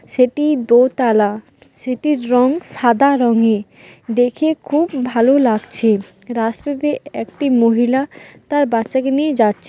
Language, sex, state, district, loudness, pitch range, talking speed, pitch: Bengali, female, West Bengal, Dakshin Dinajpur, -16 LUFS, 230-280 Hz, 105 wpm, 250 Hz